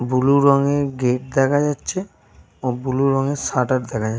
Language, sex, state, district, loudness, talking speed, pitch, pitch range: Bengali, male, Jharkhand, Jamtara, -19 LUFS, 170 wpm, 130 Hz, 125-140 Hz